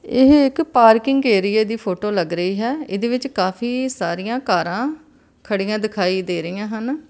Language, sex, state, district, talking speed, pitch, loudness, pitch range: Punjabi, female, Karnataka, Bangalore, 160 wpm, 220 Hz, -19 LUFS, 190-260 Hz